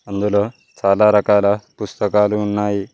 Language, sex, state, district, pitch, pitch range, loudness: Telugu, male, Telangana, Mahabubabad, 105 Hz, 100-105 Hz, -17 LUFS